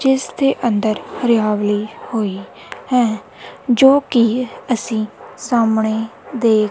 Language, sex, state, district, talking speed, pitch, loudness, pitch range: Punjabi, female, Punjab, Kapurthala, 100 wpm, 230 Hz, -17 LUFS, 215-250 Hz